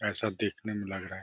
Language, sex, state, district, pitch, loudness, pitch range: Hindi, male, Uttar Pradesh, Deoria, 105 Hz, -34 LUFS, 95-105 Hz